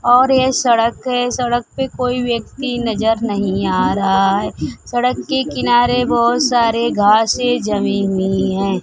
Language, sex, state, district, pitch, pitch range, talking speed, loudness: Hindi, female, Bihar, Kaimur, 235 Hz, 205-250 Hz, 150 wpm, -16 LUFS